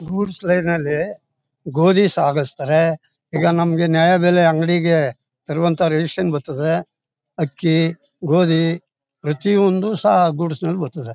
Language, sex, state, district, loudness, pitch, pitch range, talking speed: Kannada, male, Karnataka, Mysore, -18 LUFS, 165 Hz, 150-175 Hz, 110 wpm